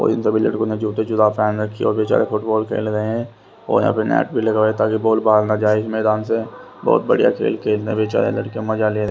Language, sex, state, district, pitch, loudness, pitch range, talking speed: Hindi, male, Haryana, Rohtak, 110 Hz, -18 LUFS, 105-110 Hz, 230 wpm